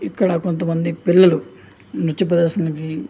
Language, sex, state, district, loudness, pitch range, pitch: Telugu, male, Andhra Pradesh, Anantapur, -18 LUFS, 155-175 Hz, 170 Hz